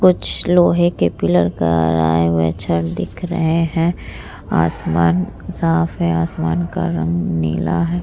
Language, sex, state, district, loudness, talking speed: Hindi, female, Bihar, Vaishali, -17 LUFS, 125 wpm